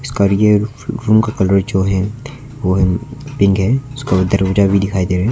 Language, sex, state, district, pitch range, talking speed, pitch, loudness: Hindi, male, Arunachal Pradesh, Longding, 95-125 Hz, 215 wpm, 100 Hz, -15 LUFS